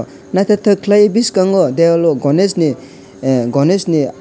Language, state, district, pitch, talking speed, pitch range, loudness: Kokborok, Tripura, West Tripura, 170 Hz, 145 wpm, 135-195 Hz, -13 LUFS